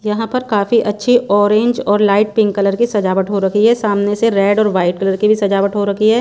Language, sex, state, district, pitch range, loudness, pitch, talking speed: Hindi, female, Haryana, Charkhi Dadri, 200-220 Hz, -14 LUFS, 205 Hz, 250 wpm